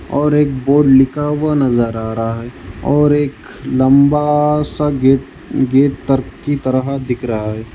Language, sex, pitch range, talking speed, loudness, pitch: Hindi, male, 125-145 Hz, 165 wpm, -15 LUFS, 135 Hz